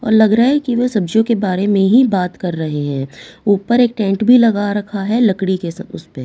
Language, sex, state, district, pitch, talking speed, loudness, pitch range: Hindi, female, Bihar, Katihar, 205 Hz, 260 wpm, -15 LUFS, 185-230 Hz